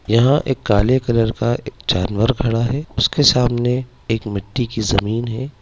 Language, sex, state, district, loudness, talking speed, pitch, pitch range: Hindi, male, Bihar, Darbhanga, -18 LUFS, 170 wpm, 120 Hz, 110-125 Hz